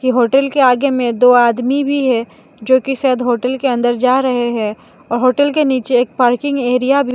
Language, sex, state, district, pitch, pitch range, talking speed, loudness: Hindi, female, Mizoram, Aizawl, 255 Hz, 245-270 Hz, 225 wpm, -14 LUFS